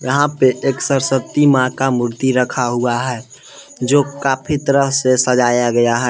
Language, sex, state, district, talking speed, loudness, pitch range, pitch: Hindi, male, Jharkhand, Palamu, 165 wpm, -16 LUFS, 125-135 Hz, 130 Hz